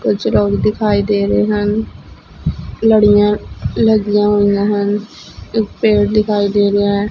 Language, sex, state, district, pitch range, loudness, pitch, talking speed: Punjabi, female, Punjab, Fazilka, 200-210 Hz, -14 LUFS, 205 Hz, 135 wpm